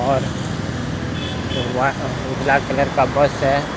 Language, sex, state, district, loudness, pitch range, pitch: Maithili, male, Bihar, Bhagalpur, -20 LUFS, 135-140 Hz, 135 Hz